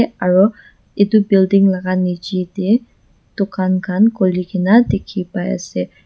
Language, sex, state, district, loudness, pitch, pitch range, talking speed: Nagamese, female, Nagaland, Dimapur, -16 LUFS, 190 Hz, 185-200 Hz, 120 wpm